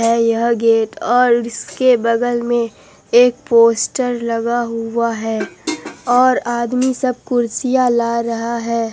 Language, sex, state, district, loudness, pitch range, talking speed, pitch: Hindi, female, Bihar, Katihar, -16 LUFS, 230-245 Hz, 120 wpm, 235 Hz